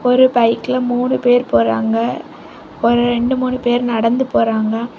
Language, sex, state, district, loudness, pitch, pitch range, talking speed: Tamil, female, Tamil Nadu, Kanyakumari, -15 LUFS, 240 Hz, 230-255 Hz, 130 wpm